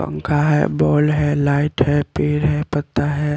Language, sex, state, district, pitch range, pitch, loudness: Hindi, male, Chandigarh, Chandigarh, 140-150 Hz, 145 Hz, -18 LUFS